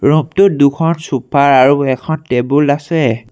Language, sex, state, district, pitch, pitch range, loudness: Assamese, male, Assam, Sonitpur, 145 Hz, 130-155 Hz, -12 LUFS